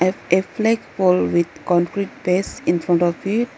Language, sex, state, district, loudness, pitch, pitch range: English, female, Arunachal Pradesh, Lower Dibang Valley, -19 LUFS, 185 Hz, 175-200 Hz